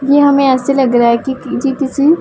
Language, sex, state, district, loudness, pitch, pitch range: Hindi, female, Punjab, Pathankot, -12 LUFS, 270 Hz, 260-280 Hz